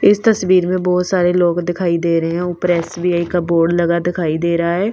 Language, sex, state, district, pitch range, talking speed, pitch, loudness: Hindi, female, Bihar, Patna, 170-180 Hz, 230 wpm, 175 Hz, -16 LUFS